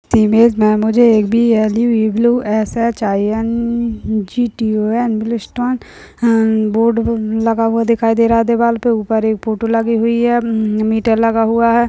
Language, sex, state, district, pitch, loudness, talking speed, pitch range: Hindi, female, Bihar, Madhepura, 225 Hz, -14 LUFS, 180 wpm, 220-235 Hz